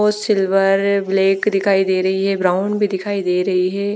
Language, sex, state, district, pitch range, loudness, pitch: Hindi, female, Punjab, Fazilka, 190-200 Hz, -17 LUFS, 195 Hz